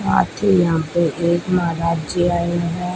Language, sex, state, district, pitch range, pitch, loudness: Hindi, female, Rajasthan, Bikaner, 170-175 Hz, 170 Hz, -19 LUFS